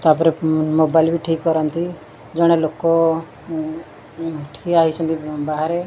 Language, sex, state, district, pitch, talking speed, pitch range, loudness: Odia, female, Odisha, Khordha, 160 Hz, 100 wpm, 155-165 Hz, -19 LUFS